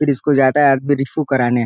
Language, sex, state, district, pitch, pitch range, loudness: Hindi, male, Uttar Pradesh, Ghazipur, 135 Hz, 130-145 Hz, -15 LUFS